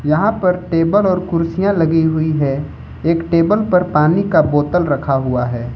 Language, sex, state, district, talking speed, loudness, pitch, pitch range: Hindi, male, Jharkhand, Ranchi, 175 wpm, -15 LUFS, 165 Hz, 145-180 Hz